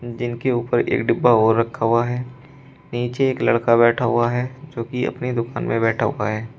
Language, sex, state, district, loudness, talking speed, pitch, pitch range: Hindi, male, Uttar Pradesh, Shamli, -20 LUFS, 190 wpm, 120 Hz, 115-125 Hz